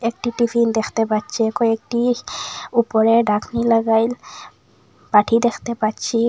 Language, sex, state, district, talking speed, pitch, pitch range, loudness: Bengali, female, Assam, Hailakandi, 105 wpm, 230 Hz, 225-235 Hz, -19 LUFS